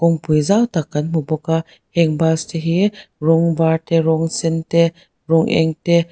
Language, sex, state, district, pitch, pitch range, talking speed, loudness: Mizo, female, Mizoram, Aizawl, 165 Hz, 160-170 Hz, 195 wpm, -17 LUFS